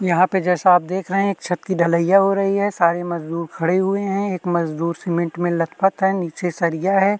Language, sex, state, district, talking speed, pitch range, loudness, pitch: Hindi, male, Uttarakhand, Tehri Garhwal, 240 wpm, 170-195 Hz, -19 LUFS, 180 Hz